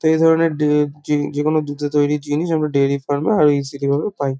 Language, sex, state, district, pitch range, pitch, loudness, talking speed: Bengali, male, West Bengal, Kolkata, 145-155 Hz, 150 Hz, -18 LUFS, 205 wpm